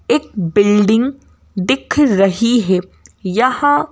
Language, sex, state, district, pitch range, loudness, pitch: Hindi, female, Madhya Pradesh, Bhopal, 185-250 Hz, -15 LUFS, 210 Hz